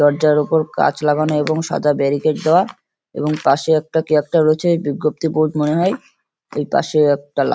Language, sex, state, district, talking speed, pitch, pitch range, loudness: Bengali, male, West Bengal, Kolkata, 175 wpm, 155 Hz, 150-160 Hz, -17 LUFS